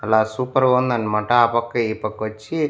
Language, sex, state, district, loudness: Telugu, male, Andhra Pradesh, Annamaya, -20 LUFS